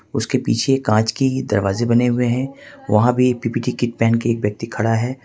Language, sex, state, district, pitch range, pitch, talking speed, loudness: Hindi, male, Jharkhand, Ranchi, 115-125 Hz, 120 Hz, 215 wpm, -19 LUFS